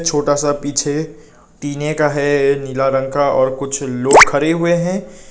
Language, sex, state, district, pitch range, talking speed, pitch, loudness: Hindi, male, Nagaland, Kohima, 140-155 Hz, 170 wpm, 145 Hz, -15 LUFS